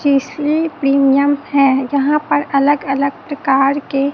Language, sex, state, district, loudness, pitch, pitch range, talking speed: Hindi, female, Chhattisgarh, Raipur, -15 LUFS, 280 Hz, 275-290 Hz, 130 wpm